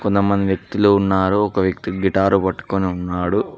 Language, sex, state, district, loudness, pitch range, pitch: Telugu, male, Telangana, Mahabubabad, -18 LUFS, 95-100 Hz, 95 Hz